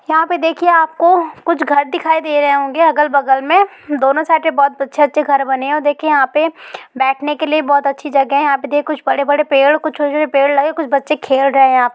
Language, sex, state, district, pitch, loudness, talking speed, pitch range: Hindi, female, Bihar, East Champaran, 295 Hz, -14 LUFS, 280 wpm, 280-315 Hz